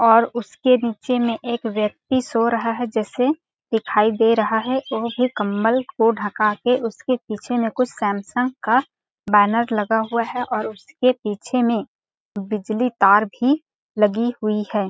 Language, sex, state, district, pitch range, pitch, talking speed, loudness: Hindi, female, Chhattisgarh, Balrampur, 215-245 Hz, 230 Hz, 160 wpm, -20 LUFS